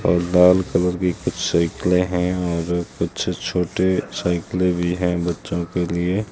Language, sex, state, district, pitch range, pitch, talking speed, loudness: Hindi, male, Rajasthan, Jaisalmer, 85-90 Hz, 90 Hz, 150 wpm, -20 LUFS